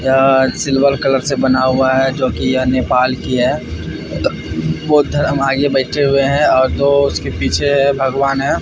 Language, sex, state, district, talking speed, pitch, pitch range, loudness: Hindi, male, Bihar, Katihar, 180 wpm, 135 Hz, 130-140 Hz, -14 LUFS